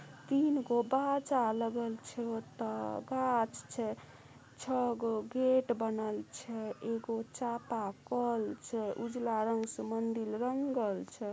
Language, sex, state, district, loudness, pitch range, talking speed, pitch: Maithili, female, Bihar, Samastipur, -35 LUFS, 220-245 Hz, 125 wpm, 230 Hz